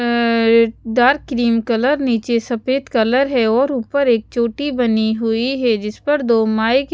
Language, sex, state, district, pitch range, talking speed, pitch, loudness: Hindi, female, Chandigarh, Chandigarh, 230-265 Hz, 180 wpm, 235 Hz, -17 LUFS